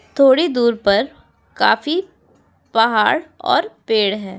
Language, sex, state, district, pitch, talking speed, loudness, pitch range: Hindi, female, Uttar Pradesh, Etah, 240 Hz, 110 wpm, -17 LUFS, 210-300 Hz